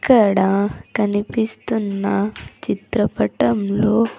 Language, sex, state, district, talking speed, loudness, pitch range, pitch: Telugu, female, Andhra Pradesh, Sri Satya Sai, 45 wpm, -19 LUFS, 200-225 Hz, 205 Hz